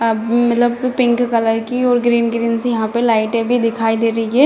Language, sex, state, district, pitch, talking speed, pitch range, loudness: Hindi, female, Bihar, Jamui, 235 Hz, 230 wpm, 225-240 Hz, -16 LUFS